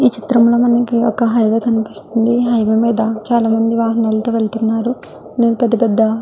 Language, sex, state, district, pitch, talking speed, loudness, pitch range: Telugu, female, Andhra Pradesh, Guntur, 230 Hz, 145 wpm, -15 LUFS, 225-235 Hz